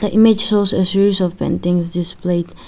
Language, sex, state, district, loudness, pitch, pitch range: English, female, Arunachal Pradesh, Lower Dibang Valley, -16 LUFS, 185 Hz, 175-205 Hz